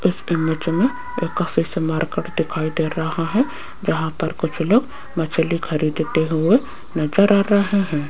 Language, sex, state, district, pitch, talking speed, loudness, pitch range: Hindi, female, Rajasthan, Jaipur, 165 Hz, 155 wpm, -20 LUFS, 160-205 Hz